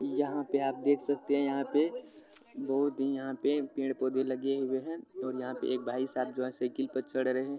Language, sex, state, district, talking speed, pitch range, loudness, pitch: Maithili, male, Bihar, Supaul, 205 wpm, 130-140 Hz, -32 LUFS, 135 Hz